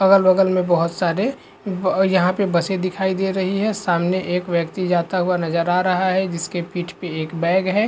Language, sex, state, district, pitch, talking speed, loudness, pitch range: Hindi, male, Chhattisgarh, Bastar, 185 Hz, 215 wpm, -20 LUFS, 175-190 Hz